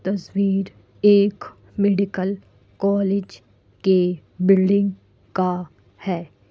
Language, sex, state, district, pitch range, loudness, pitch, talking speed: Hindi, female, Bihar, Kishanganj, 180-200 Hz, -21 LUFS, 190 Hz, 75 wpm